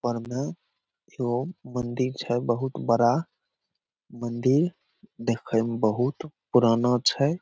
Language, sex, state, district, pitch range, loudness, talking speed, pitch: Maithili, male, Bihar, Samastipur, 120-135 Hz, -26 LUFS, 95 wpm, 125 Hz